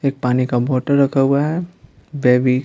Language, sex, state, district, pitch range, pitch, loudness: Hindi, male, Bihar, Patna, 125-140 Hz, 130 Hz, -17 LUFS